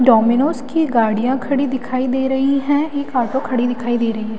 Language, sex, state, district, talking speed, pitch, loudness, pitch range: Hindi, female, Delhi, New Delhi, 205 wpm, 260 Hz, -18 LUFS, 240-275 Hz